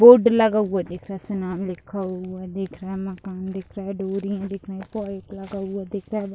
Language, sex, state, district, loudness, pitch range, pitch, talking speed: Hindi, female, Bihar, Sitamarhi, -25 LUFS, 190-200 Hz, 195 Hz, 245 wpm